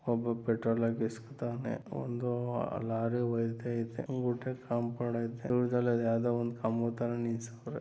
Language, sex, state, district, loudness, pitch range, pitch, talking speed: Kannada, male, Karnataka, Mysore, -34 LUFS, 115-120 Hz, 120 Hz, 45 wpm